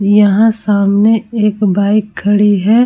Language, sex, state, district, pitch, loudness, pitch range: Hindi, female, Bihar, Vaishali, 210 Hz, -11 LUFS, 200-220 Hz